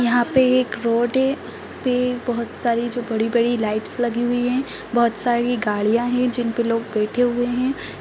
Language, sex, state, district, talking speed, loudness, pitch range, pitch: Kumaoni, female, Uttarakhand, Tehri Garhwal, 170 wpm, -21 LUFS, 230-245 Hz, 240 Hz